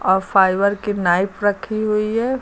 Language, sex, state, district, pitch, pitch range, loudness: Hindi, female, Uttar Pradesh, Lucknow, 200 Hz, 190-215 Hz, -18 LUFS